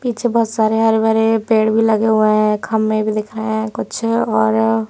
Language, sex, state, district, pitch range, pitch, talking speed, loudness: Hindi, male, Madhya Pradesh, Bhopal, 215-225 Hz, 220 Hz, 210 wpm, -16 LUFS